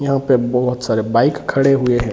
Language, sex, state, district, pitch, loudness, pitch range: Hindi, male, Bihar, Gaya, 125 Hz, -16 LUFS, 120-135 Hz